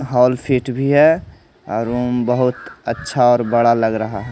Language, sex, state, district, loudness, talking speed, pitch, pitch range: Hindi, male, Odisha, Malkangiri, -17 LUFS, 165 wpm, 125 Hz, 120-130 Hz